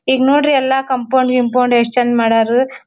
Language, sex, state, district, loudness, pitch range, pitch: Kannada, female, Karnataka, Dharwad, -14 LUFS, 240-265 Hz, 255 Hz